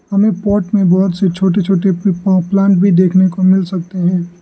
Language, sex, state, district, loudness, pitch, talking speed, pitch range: Hindi, male, Arunachal Pradesh, Lower Dibang Valley, -13 LUFS, 190 Hz, 205 wpm, 180-195 Hz